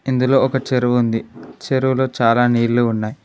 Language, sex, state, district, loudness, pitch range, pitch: Telugu, male, Telangana, Mahabubabad, -17 LUFS, 115-130 Hz, 125 Hz